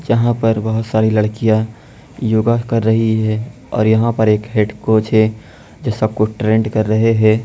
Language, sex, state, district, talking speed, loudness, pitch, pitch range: Hindi, male, Bihar, Kishanganj, 185 wpm, -16 LUFS, 110 Hz, 110-115 Hz